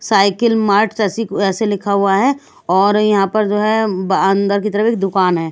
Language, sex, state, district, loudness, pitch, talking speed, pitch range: Hindi, female, Bihar, Katihar, -15 LUFS, 205 Hz, 195 wpm, 195-215 Hz